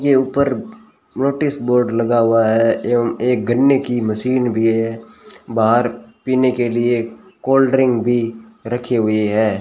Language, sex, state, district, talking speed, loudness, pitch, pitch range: Hindi, male, Rajasthan, Bikaner, 150 wpm, -17 LUFS, 120 Hz, 115-130 Hz